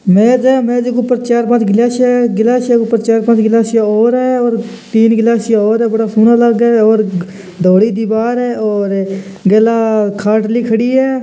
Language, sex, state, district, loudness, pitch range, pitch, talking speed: Hindi, male, Rajasthan, Churu, -12 LUFS, 215-240 Hz, 225 Hz, 180 wpm